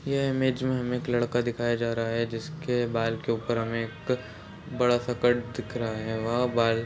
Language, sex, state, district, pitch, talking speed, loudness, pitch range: Hindi, male, Chhattisgarh, Balrampur, 120 Hz, 210 wpm, -28 LUFS, 115-125 Hz